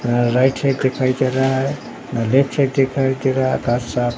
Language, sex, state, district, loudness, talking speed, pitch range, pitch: Hindi, male, Bihar, Katihar, -18 LUFS, 185 wpm, 120-135 Hz, 130 Hz